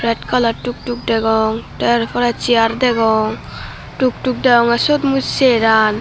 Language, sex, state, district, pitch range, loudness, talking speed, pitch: Chakma, female, Tripura, Dhalai, 225-250 Hz, -15 LUFS, 130 wpm, 235 Hz